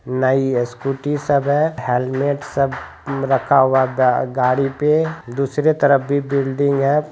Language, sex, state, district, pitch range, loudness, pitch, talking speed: Hindi, male, Bihar, Jamui, 130-145 Hz, -18 LUFS, 140 Hz, 135 wpm